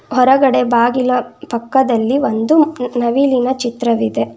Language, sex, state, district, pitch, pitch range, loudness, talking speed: Kannada, female, Karnataka, Bangalore, 250 Hz, 235-265 Hz, -14 LUFS, 80 wpm